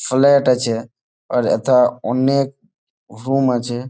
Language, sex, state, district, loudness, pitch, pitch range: Bengali, male, West Bengal, Malda, -17 LUFS, 125 Hz, 120-135 Hz